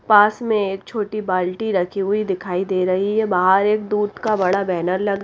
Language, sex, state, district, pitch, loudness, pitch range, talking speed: Hindi, female, Haryana, Rohtak, 200 Hz, -19 LUFS, 185-210 Hz, 205 wpm